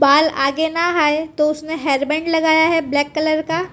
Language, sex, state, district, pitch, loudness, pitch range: Hindi, female, Gujarat, Valsad, 310 Hz, -17 LUFS, 295-320 Hz